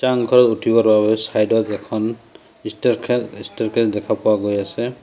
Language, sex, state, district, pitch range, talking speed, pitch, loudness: Assamese, male, Assam, Sonitpur, 105-120 Hz, 120 wpm, 110 Hz, -18 LUFS